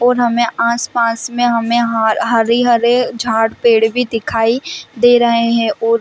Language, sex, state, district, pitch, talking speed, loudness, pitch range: Hindi, female, Chhattisgarh, Bilaspur, 235 Hz, 150 wpm, -14 LUFS, 230-240 Hz